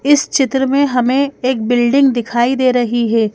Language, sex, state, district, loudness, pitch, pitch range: Hindi, female, Madhya Pradesh, Bhopal, -14 LUFS, 255 Hz, 240-270 Hz